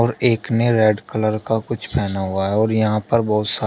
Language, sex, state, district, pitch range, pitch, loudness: Hindi, male, Uttar Pradesh, Shamli, 105-115 Hz, 110 Hz, -19 LUFS